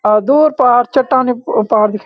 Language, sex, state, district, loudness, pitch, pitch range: Garhwali, male, Uttarakhand, Uttarkashi, -12 LUFS, 245 Hz, 215-265 Hz